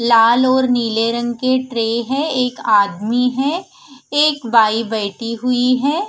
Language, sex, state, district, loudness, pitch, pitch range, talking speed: Hindi, female, Punjab, Fazilka, -16 LUFS, 245 Hz, 230-260 Hz, 150 wpm